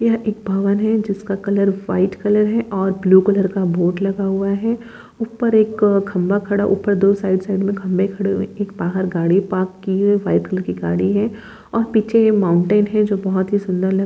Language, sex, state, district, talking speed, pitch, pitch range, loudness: Hindi, female, Chhattisgarh, Bilaspur, 220 wpm, 200 Hz, 190-210 Hz, -18 LUFS